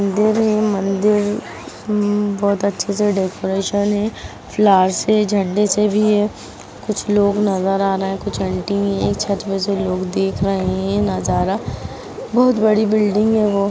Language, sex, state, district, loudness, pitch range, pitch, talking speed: Hindi, female, Bihar, Sitamarhi, -18 LUFS, 195-210 Hz, 205 Hz, 165 wpm